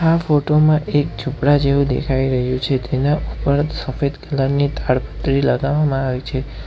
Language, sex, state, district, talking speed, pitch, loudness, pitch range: Gujarati, male, Gujarat, Valsad, 160 wpm, 140 Hz, -18 LUFS, 130-145 Hz